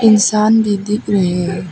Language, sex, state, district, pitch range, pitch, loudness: Hindi, female, Arunachal Pradesh, Papum Pare, 185-215 Hz, 205 Hz, -14 LUFS